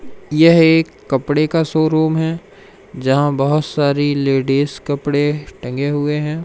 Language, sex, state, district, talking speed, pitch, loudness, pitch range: Hindi, male, Madhya Pradesh, Umaria, 130 wpm, 150 Hz, -16 LUFS, 145-160 Hz